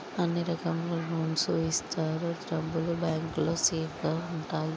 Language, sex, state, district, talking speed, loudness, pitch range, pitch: Telugu, female, Andhra Pradesh, Guntur, 125 wpm, -30 LUFS, 160-170 Hz, 165 Hz